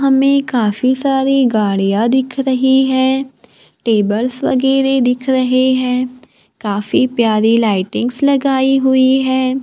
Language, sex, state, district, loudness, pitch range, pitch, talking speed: Hindi, female, Maharashtra, Gondia, -14 LUFS, 235-265 Hz, 260 Hz, 110 wpm